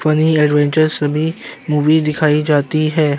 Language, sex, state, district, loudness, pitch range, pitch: Hindi, male, Uttar Pradesh, Jyotiba Phule Nagar, -15 LUFS, 150-155 Hz, 155 Hz